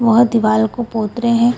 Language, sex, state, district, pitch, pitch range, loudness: Hindi, female, Bihar, Purnia, 230 Hz, 220-240 Hz, -15 LUFS